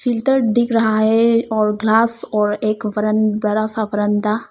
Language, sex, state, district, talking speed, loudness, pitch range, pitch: Hindi, female, Arunachal Pradesh, Papum Pare, 175 wpm, -17 LUFS, 210-230 Hz, 215 Hz